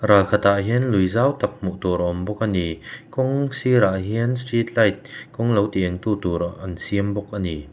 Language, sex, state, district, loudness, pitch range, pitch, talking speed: Mizo, male, Mizoram, Aizawl, -21 LUFS, 95-115 Hz, 100 Hz, 225 wpm